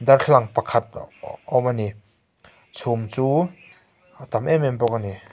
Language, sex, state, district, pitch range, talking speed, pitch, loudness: Mizo, male, Mizoram, Aizawl, 105-135 Hz, 170 wpm, 120 Hz, -21 LUFS